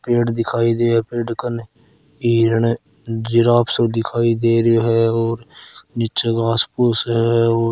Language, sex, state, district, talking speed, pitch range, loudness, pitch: Marwari, male, Rajasthan, Churu, 155 wpm, 115-120 Hz, -18 LUFS, 115 Hz